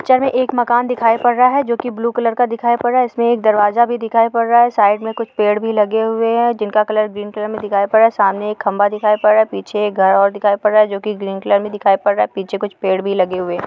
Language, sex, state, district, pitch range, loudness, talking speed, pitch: Hindi, female, Jharkhand, Sahebganj, 205-235 Hz, -15 LUFS, 320 wpm, 215 Hz